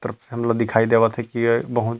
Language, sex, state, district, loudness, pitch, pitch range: Chhattisgarhi, male, Chhattisgarh, Rajnandgaon, -20 LUFS, 115 Hz, 115-120 Hz